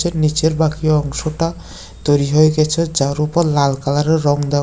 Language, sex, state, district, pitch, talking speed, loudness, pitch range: Bengali, male, Tripura, West Tripura, 155 Hz, 170 wpm, -16 LUFS, 145-160 Hz